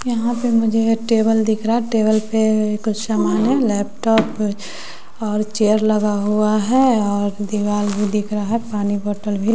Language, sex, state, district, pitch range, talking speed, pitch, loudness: Hindi, female, Bihar, West Champaran, 210-225 Hz, 180 wpm, 215 Hz, -18 LUFS